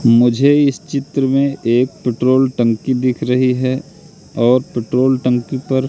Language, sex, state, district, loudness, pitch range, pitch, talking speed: Hindi, male, Madhya Pradesh, Katni, -15 LUFS, 125-135 Hz, 130 Hz, 150 wpm